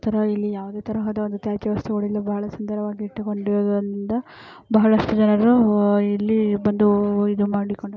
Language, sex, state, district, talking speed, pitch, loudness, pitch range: Kannada, female, Karnataka, Gulbarga, 115 wpm, 210 Hz, -21 LUFS, 205-215 Hz